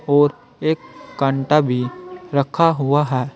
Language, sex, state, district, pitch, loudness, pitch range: Hindi, male, Uttar Pradesh, Saharanpur, 145 Hz, -19 LUFS, 135-165 Hz